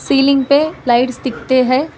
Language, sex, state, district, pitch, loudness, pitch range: Hindi, female, Telangana, Hyderabad, 265 Hz, -14 LUFS, 255-280 Hz